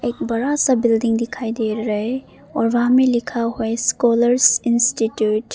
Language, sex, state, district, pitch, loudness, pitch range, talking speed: Hindi, female, Arunachal Pradesh, Papum Pare, 235 Hz, -18 LUFS, 225-250 Hz, 150 wpm